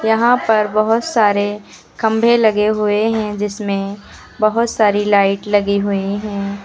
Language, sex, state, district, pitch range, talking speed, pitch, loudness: Hindi, female, Uttar Pradesh, Lucknow, 205-220 Hz, 135 wpm, 210 Hz, -16 LUFS